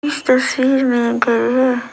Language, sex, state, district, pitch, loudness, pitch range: Hindi, female, Arunachal Pradesh, Lower Dibang Valley, 255 Hz, -15 LUFS, 240-265 Hz